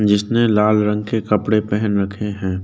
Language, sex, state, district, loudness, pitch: Hindi, male, Uttarakhand, Tehri Garhwal, -18 LUFS, 105 Hz